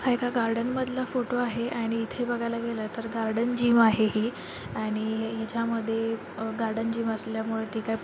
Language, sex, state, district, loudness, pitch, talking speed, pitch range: Marathi, female, Maharashtra, Dhule, -28 LUFS, 230 Hz, 180 wpm, 225-235 Hz